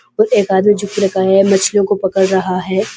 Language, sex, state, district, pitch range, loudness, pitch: Hindi, male, Uttarakhand, Uttarkashi, 190-205 Hz, -13 LUFS, 195 Hz